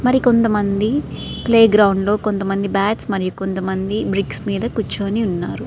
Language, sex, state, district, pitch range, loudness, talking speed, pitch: Telugu, female, Andhra Pradesh, Srikakulam, 195-225 Hz, -18 LUFS, 125 wpm, 200 Hz